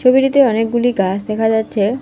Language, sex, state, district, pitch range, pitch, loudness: Bengali, female, West Bengal, Alipurduar, 215-255 Hz, 225 Hz, -15 LUFS